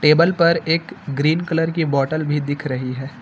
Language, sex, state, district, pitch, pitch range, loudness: Hindi, male, Uttar Pradesh, Lucknow, 155 Hz, 140-165 Hz, -19 LUFS